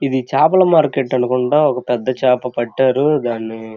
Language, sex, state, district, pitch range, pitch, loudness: Telugu, male, Andhra Pradesh, Krishna, 120-140 Hz, 130 Hz, -16 LUFS